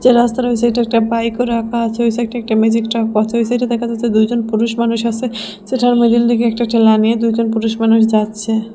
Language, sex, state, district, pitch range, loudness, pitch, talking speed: Bengali, female, Assam, Hailakandi, 225-235 Hz, -15 LUFS, 230 Hz, 200 wpm